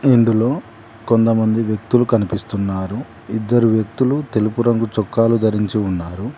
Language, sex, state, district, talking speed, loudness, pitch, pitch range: Telugu, male, Telangana, Mahabubabad, 95 wpm, -18 LUFS, 115 Hz, 110-115 Hz